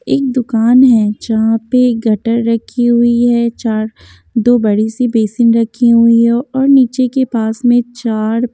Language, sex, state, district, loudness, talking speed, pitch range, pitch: Hindi, female, Haryana, Jhajjar, -12 LUFS, 170 wpm, 225-245 Hz, 235 Hz